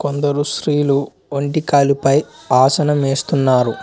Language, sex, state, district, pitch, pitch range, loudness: Telugu, male, Telangana, Mahabubabad, 140 Hz, 135-145 Hz, -16 LUFS